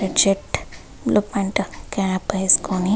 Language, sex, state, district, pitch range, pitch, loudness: Telugu, female, Andhra Pradesh, Visakhapatnam, 190-200 Hz, 195 Hz, -20 LUFS